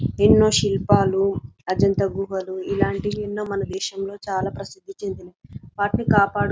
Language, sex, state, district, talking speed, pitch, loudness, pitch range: Telugu, female, Telangana, Karimnagar, 130 wpm, 195 Hz, -22 LUFS, 185-205 Hz